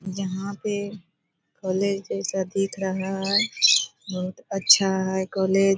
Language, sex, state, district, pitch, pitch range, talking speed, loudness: Hindi, female, Bihar, Purnia, 195 Hz, 190-195 Hz, 125 wpm, -23 LUFS